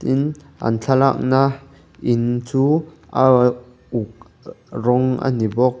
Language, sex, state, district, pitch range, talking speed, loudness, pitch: Mizo, male, Mizoram, Aizawl, 120-135 Hz, 115 wpm, -19 LUFS, 130 Hz